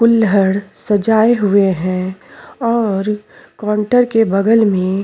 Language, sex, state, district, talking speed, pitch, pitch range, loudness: Hindi, female, Chhattisgarh, Sukma, 120 wpm, 210 Hz, 195-225 Hz, -15 LUFS